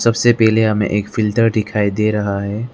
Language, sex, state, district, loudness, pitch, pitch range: Hindi, male, Arunachal Pradesh, Lower Dibang Valley, -16 LUFS, 110 Hz, 105-115 Hz